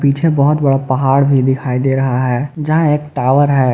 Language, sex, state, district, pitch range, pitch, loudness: Hindi, male, Jharkhand, Garhwa, 130-145 Hz, 135 Hz, -14 LUFS